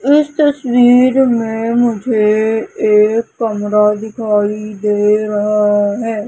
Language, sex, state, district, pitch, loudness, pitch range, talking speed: Hindi, female, Madhya Pradesh, Umaria, 220 Hz, -13 LUFS, 210-240 Hz, 95 wpm